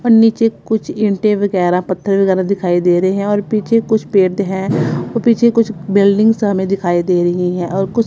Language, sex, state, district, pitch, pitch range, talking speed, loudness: Hindi, female, Punjab, Kapurthala, 200 Hz, 185-220 Hz, 200 wpm, -14 LUFS